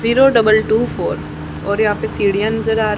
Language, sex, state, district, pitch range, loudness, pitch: Hindi, female, Haryana, Charkhi Dadri, 210-225 Hz, -16 LUFS, 215 Hz